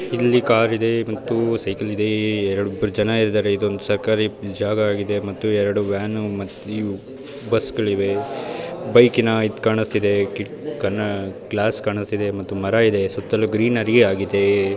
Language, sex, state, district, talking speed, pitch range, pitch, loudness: Kannada, male, Karnataka, Bijapur, 140 wpm, 100-115 Hz, 105 Hz, -20 LUFS